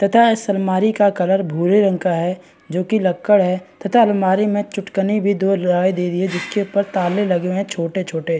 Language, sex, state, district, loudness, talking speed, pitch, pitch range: Hindi, female, Bihar, East Champaran, -18 LUFS, 235 wpm, 190 Hz, 180-205 Hz